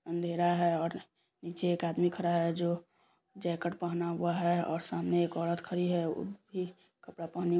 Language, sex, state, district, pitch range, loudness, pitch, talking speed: Hindi, female, Bihar, Sitamarhi, 170-175 Hz, -33 LUFS, 175 Hz, 180 wpm